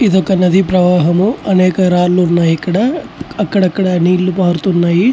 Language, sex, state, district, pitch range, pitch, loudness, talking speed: Telugu, male, Andhra Pradesh, Chittoor, 180-190 Hz, 185 Hz, -12 LUFS, 130 wpm